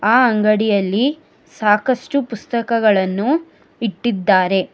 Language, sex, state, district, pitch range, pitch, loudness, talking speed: Kannada, female, Karnataka, Bangalore, 200-250 Hz, 220 Hz, -17 LUFS, 65 wpm